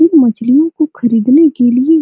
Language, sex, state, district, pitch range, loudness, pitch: Hindi, female, Bihar, Supaul, 245-315 Hz, -11 LUFS, 275 Hz